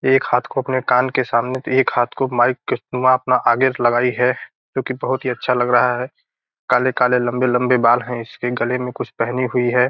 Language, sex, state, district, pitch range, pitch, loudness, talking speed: Hindi, male, Bihar, Gopalganj, 120-130 Hz, 125 Hz, -18 LUFS, 220 wpm